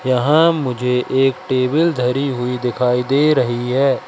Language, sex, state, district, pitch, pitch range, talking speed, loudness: Hindi, male, Madhya Pradesh, Katni, 130 Hz, 125-140 Hz, 145 wpm, -17 LUFS